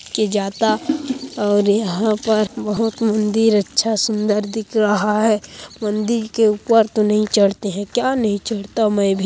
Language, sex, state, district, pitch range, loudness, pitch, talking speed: Hindi, female, Chhattisgarh, Kabirdham, 205-225 Hz, -18 LUFS, 215 Hz, 155 wpm